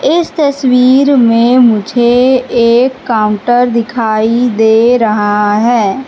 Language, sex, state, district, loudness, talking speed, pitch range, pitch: Hindi, female, Madhya Pradesh, Katni, -9 LUFS, 100 wpm, 220-255 Hz, 240 Hz